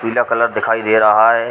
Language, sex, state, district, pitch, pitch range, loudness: Hindi, male, Uttar Pradesh, Ghazipur, 115 Hz, 110-115 Hz, -14 LUFS